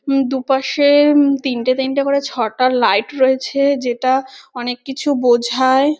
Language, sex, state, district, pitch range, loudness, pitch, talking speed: Bengali, female, West Bengal, North 24 Parganas, 255-280 Hz, -16 LUFS, 265 Hz, 120 wpm